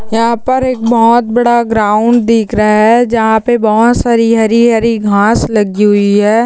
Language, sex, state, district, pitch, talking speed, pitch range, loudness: Hindi, female, Bihar, Purnia, 225 Hz, 175 wpm, 215-235 Hz, -10 LUFS